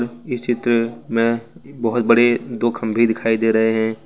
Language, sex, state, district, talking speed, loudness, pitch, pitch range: Hindi, male, Jharkhand, Ranchi, 165 wpm, -19 LUFS, 115 Hz, 115-120 Hz